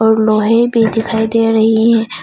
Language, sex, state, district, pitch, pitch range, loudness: Hindi, female, Arunachal Pradesh, Longding, 225 Hz, 220-230 Hz, -12 LUFS